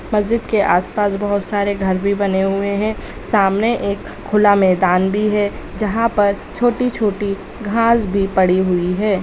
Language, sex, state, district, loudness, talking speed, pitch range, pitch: Hindi, female, Bihar, Sitamarhi, -17 LUFS, 155 wpm, 195-210 Hz, 200 Hz